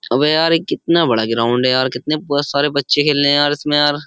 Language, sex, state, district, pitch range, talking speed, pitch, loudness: Hindi, male, Uttar Pradesh, Jyotiba Phule Nagar, 130-150 Hz, 250 wpm, 145 Hz, -15 LUFS